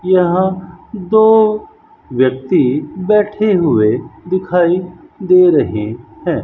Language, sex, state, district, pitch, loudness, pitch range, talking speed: Hindi, female, Rajasthan, Bikaner, 185 Hz, -14 LUFS, 170-210 Hz, 85 wpm